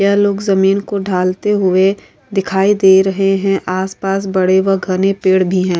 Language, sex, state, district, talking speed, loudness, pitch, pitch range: Hindi, female, Maharashtra, Aurangabad, 185 wpm, -14 LUFS, 195 Hz, 190-195 Hz